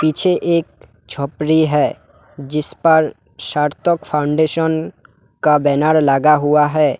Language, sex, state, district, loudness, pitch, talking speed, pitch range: Hindi, male, West Bengal, Alipurduar, -16 LUFS, 150 Hz, 110 wpm, 150-160 Hz